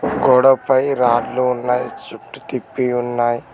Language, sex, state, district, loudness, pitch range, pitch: Telugu, male, Telangana, Mahabubabad, -17 LUFS, 120-130 Hz, 125 Hz